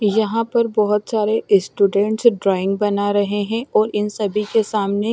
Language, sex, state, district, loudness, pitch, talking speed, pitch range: Hindi, female, Himachal Pradesh, Shimla, -18 LUFS, 210 Hz, 165 wpm, 205-220 Hz